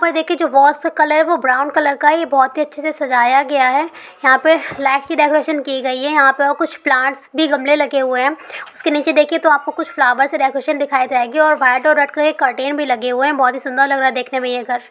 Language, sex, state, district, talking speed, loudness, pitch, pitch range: Hindi, female, Bihar, Sitamarhi, 295 wpm, -15 LUFS, 285 Hz, 265-305 Hz